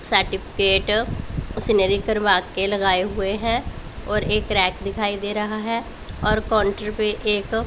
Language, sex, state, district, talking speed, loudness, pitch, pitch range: Hindi, female, Punjab, Pathankot, 150 wpm, -21 LUFS, 210 Hz, 200-215 Hz